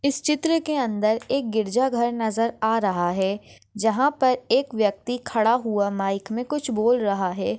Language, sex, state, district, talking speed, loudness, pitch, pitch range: Hindi, female, Maharashtra, Sindhudurg, 180 wpm, -23 LUFS, 225 Hz, 205-260 Hz